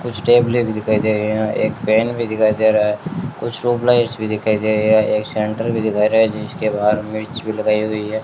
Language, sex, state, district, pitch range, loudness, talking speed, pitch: Hindi, male, Rajasthan, Bikaner, 105-115 Hz, -17 LUFS, 245 wpm, 110 Hz